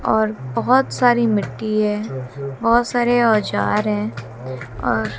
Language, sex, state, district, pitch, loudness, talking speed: Hindi, female, Haryana, Jhajjar, 210 Hz, -19 LUFS, 125 wpm